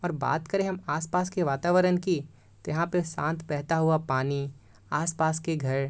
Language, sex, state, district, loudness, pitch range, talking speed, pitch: Hindi, male, Bihar, East Champaran, -28 LUFS, 140-175 Hz, 195 wpm, 160 Hz